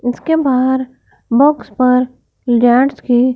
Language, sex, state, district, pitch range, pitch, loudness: Hindi, female, Punjab, Fazilka, 245-265 Hz, 255 Hz, -14 LUFS